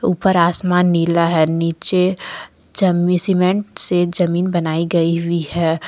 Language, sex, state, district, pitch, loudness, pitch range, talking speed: Hindi, female, Jharkhand, Ranchi, 175 Hz, -17 LUFS, 170-180 Hz, 130 wpm